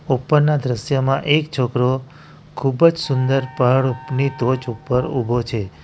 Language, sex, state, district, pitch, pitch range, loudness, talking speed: Gujarati, male, Gujarat, Valsad, 130 Hz, 125-140 Hz, -19 LUFS, 115 wpm